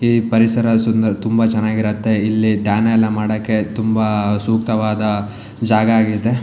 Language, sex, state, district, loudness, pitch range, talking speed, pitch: Kannada, male, Karnataka, Shimoga, -16 LUFS, 105-115 Hz, 120 wpm, 110 Hz